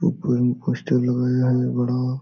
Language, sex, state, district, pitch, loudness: Hindi, male, Bihar, Supaul, 125 Hz, -21 LUFS